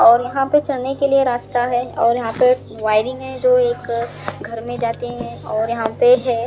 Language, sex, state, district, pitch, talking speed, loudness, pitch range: Hindi, male, Punjab, Fazilka, 245 Hz, 215 wpm, -18 LUFS, 235-265 Hz